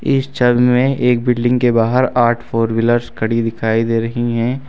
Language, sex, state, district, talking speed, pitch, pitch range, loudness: Hindi, male, Uttar Pradesh, Lucknow, 190 wpm, 120 Hz, 115-125 Hz, -15 LUFS